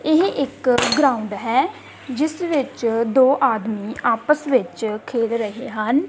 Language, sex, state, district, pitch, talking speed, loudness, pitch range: Punjabi, female, Punjab, Kapurthala, 255 Hz, 140 wpm, -20 LUFS, 225-285 Hz